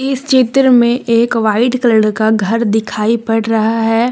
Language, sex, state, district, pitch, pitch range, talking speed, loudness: Hindi, female, Jharkhand, Deoghar, 230 Hz, 220-245 Hz, 175 wpm, -12 LUFS